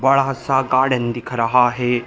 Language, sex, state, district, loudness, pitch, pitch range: Hindi, male, Bihar, Darbhanga, -18 LUFS, 125 Hz, 120-135 Hz